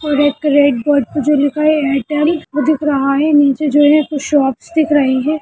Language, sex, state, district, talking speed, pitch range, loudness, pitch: Hindi, female, Bihar, Gaya, 255 wpm, 280-300 Hz, -13 LUFS, 290 Hz